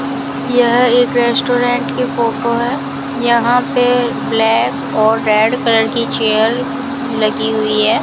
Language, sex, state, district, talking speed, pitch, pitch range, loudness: Hindi, female, Rajasthan, Bikaner, 120 wpm, 240 Hz, 225-245 Hz, -14 LUFS